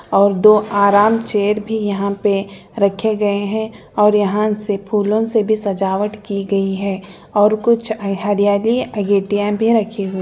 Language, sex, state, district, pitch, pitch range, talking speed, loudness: Hindi, female, Bihar, Jahanabad, 205 Hz, 200-215 Hz, 155 wpm, -16 LUFS